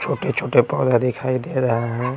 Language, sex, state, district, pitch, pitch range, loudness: Hindi, male, Bihar, Patna, 125 Hz, 120-130 Hz, -20 LUFS